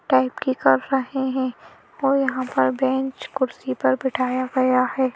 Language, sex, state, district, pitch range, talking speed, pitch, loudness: Hindi, female, Madhya Pradesh, Bhopal, 250-265 Hz, 160 wpm, 260 Hz, -22 LUFS